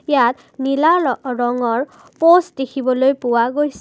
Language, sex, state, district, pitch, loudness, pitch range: Assamese, female, Assam, Kamrup Metropolitan, 265 Hz, -17 LUFS, 245-295 Hz